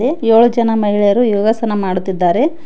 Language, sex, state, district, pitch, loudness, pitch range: Kannada, female, Karnataka, Koppal, 225 Hz, -13 LUFS, 205-235 Hz